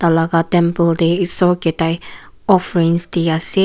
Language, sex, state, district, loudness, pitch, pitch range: Nagamese, female, Nagaland, Kohima, -15 LUFS, 170 Hz, 165-180 Hz